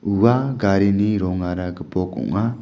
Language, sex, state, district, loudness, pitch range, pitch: Garo, male, Meghalaya, West Garo Hills, -20 LUFS, 90-110 Hz, 100 Hz